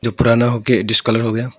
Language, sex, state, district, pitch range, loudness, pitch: Hindi, female, Arunachal Pradesh, Longding, 115-120 Hz, -15 LUFS, 115 Hz